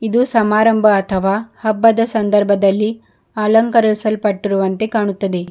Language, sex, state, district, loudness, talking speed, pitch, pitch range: Kannada, female, Karnataka, Bidar, -15 LUFS, 75 wpm, 215 Hz, 200-225 Hz